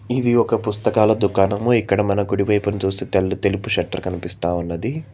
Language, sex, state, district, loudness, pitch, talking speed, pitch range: Telugu, male, Telangana, Hyderabad, -20 LUFS, 105 Hz, 150 wpm, 100-115 Hz